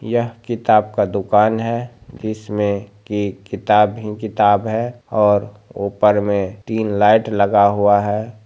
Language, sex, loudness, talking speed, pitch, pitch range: Maithili, male, -17 LUFS, 135 wpm, 105 Hz, 100-110 Hz